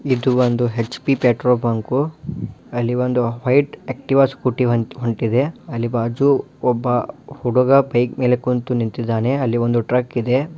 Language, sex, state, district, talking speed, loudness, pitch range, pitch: Kannada, male, Karnataka, Dharwad, 125 wpm, -19 LUFS, 120-135 Hz, 125 Hz